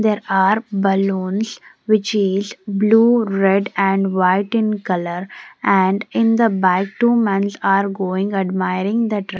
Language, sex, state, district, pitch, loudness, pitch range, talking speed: English, female, Odisha, Nuapada, 195 Hz, -17 LUFS, 190-215 Hz, 140 wpm